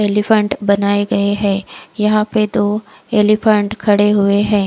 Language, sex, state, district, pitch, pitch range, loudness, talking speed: Hindi, female, Odisha, Khordha, 205 Hz, 200-215 Hz, -15 LUFS, 140 wpm